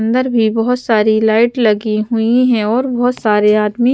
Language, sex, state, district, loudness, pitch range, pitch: Hindi, female, Punjab, Pathankot, -13 LUFS, 215-245 Hz, 225 Hz